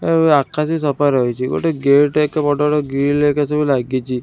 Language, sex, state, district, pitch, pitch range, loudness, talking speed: Odia, female, Odisha, Khordha, 145 Hz, 135-150 Hz, -16 LUFS, 185 wpm